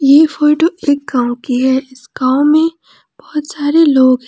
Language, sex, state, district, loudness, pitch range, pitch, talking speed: Hindi, female, Jharkhand, Palamu, -13 LUFS, 260-310 Hz, 290 Hz, 180 wpm